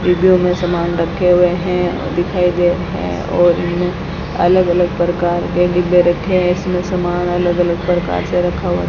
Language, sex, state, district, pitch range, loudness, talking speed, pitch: Hindi, female, Rajasthan, Bikaner, 175-180 Hz, -15 LUFS, 180 wpm, 175 Hz